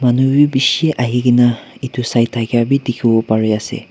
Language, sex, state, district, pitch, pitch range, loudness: Nagamese, male, Nagaland, Kohima, 120 Hz, 115-130 Hz, -15 LUFS